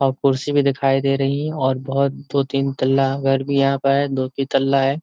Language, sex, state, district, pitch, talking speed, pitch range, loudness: Hindi, male, Uttar Pradesh, Ghazipur, 135 Hz, 250 wpm, 135-140 Hz, -19 LUFS